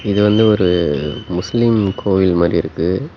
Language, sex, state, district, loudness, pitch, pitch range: Tamil, male, Tamil Nadu, Namakkal, -15 LUFS, 95 Hz, 85-105 Hz